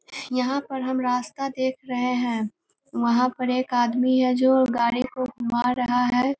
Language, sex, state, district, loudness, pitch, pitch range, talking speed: Hindi, female, Bihar, Sitamarhi, -24 LUFS, 250 Hz, 245-260 Hz, 170 wpm